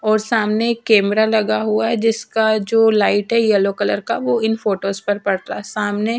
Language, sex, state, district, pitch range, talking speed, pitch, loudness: Hindi, female, Chhattisgarh, Raipur, 205-225 Hz, 205 wpm, 215 Hz, -17 LUFS